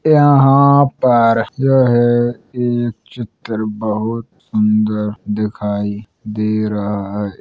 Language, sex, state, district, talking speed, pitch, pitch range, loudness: Bundeli, male, Uttar Pradesh, Jalaun, 90 wpm, 110 Hz, 105-120 Hz, -15 LUFS